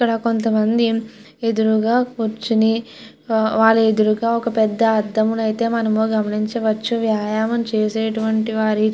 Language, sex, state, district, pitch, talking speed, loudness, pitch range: Telugu, female, Andhra Pradesh, Chittoor, 220 Hz, 120 wpm, -18 LUFS, 220-230 Hz